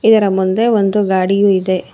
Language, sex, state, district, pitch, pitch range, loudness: Kannada, female, Karnataka, Bangalore, 195 Hz, 190-205 Hz, -13 LUFS